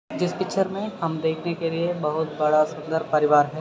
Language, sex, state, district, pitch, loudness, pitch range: Hindi, male, Maharashtra, Sindhudurg, 160 Hz, -24 LUFS, 155-175 Hz